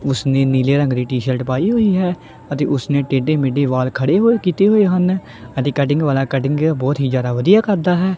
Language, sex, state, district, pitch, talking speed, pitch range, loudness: Punjabi, female, Punjab, Kapurthala, 140 Hz, 205 wpm, 130-180 Hz, -16 LUFS